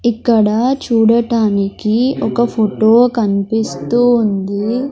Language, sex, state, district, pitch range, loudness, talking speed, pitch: Telugu, male, Andhra Pradesh, Sri Satya Sai, 215-240 Hz, -14 LUFS, 75 wpm, 225 Hz